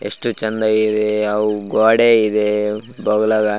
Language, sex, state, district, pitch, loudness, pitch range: Kannada, male, Karnataka, Raichur, 105 Hz, -16 LUFS, 105-110 Hz